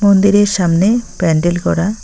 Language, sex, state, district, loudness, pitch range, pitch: Bengali, female, West Bengal, Cooch Behar, -13 LUFS, 175-205 Hz, 195 Hz